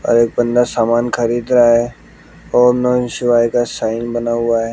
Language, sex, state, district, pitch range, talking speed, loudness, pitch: Hindi, male, Bihar, West Champaran, 115-120 Hz, 190 wpm, -15 LUFS, 120 Hz